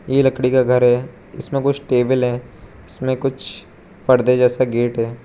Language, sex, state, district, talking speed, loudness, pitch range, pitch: Hindi, male, Arunachal Pradesh, Lower Dibang Valley, 170 wpm, -17 LUFS, 120-130 Hz, 125 Hz